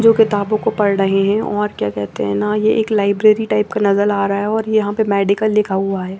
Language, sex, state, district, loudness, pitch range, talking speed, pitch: Hindi, female, Chandigarh, Chandigarh, -16 LUFS, 200-215 Hz, 250 wpm, 205 Hz